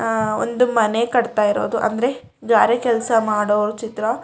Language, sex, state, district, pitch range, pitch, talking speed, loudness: Kannada, female, Karnataka, Shimoga, 215-235 Hz, 225 Hz, 155 wpm, -19 LUFS